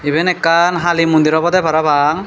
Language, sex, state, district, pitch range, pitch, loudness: Chakma, male, Tripura, Dhalai, 155-175 Hz, 165 Hz, -13 LUFS